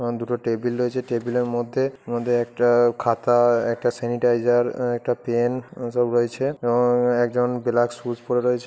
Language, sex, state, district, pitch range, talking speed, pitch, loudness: Bengali, male, West Bengal, Purulia, 120-125 Hz, 160 wpm, 120 Hz, -22 LUFS